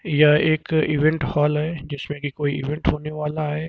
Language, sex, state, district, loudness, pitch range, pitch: Hindi, male, Uttar Pradesh, Lucknow, -21 LUFS, 145-155 Hz, 150 Hz